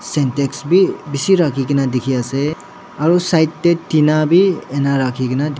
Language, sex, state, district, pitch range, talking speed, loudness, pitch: Nagamese, male, Nagaland, Dimapur, 135-165 Hz, 150 wpm, -16 LUFS, 145 Hz